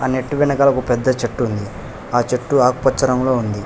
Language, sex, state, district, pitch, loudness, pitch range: Telugu, male, Telangana, Hyderabad, 125 Hz, -17 LUFS, 120-130 Hz